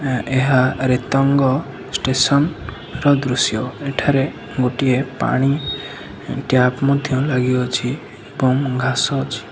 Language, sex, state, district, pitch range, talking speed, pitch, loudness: Odia, male, Odisha, Khordha, 125-140 Hz, 90 wpm, 130 Hz, -18 LUFS